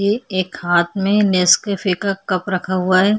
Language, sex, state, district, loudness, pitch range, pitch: Hindi, female, Chhattisgarh, Kabirdham, -17 LUFS, 185-200 Hz, 185 Hz